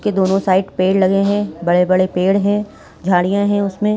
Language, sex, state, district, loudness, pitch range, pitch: Hindi, female, Chhattisgarh, Bilaspur, -16 LUFS, 185-205 Hz, 195 Hz